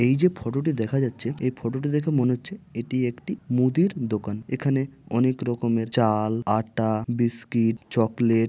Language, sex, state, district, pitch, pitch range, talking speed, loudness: Bengali, male, West Bengal, Malda, 120 Hz, 115-135 Hz, 155 wpm, -25 LUFS